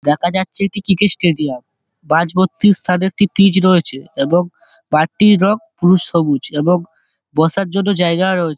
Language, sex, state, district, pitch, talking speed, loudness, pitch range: Bengali, male, West Bengal, Dakshin Dinajpur, 180 Hz, 160 wpm, -15 LUFS, 165-195 Hz